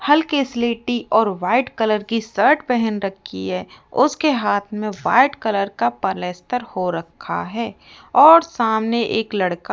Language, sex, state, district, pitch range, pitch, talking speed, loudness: Hindi, female, Rajasthan, Jaipur, 195-250 Hz, 225 Hz, 155 wpm, -19 LUFS